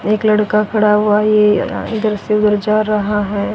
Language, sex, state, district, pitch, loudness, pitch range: Hindi, female, Haryana, Rohtak, 210 Hz, -14 LUFS, 210-215 Hz